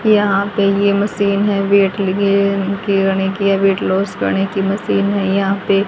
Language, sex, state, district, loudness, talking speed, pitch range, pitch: Hindi, female, Haryana, Rohtak, -15 LUFS, 195 wpm, 195-200 Hz, 200 Hz